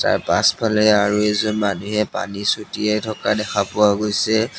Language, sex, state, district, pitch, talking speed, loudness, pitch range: Assamese, male, Assam, Sonitpur, 105 Hz, 130 wpm, -19 LUFS, 105-110 Hz